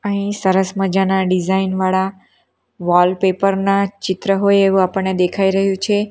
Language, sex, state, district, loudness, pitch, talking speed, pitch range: Gujarati, female, Gujarat, Valsad, -16 LUFS, 195 Hz, 135 wpm, 190-195 Hz